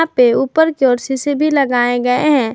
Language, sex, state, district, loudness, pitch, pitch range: Hindi, female, Jharkhand, Ranchi, -14 LUFS, 265 Hz, 245-290 Hz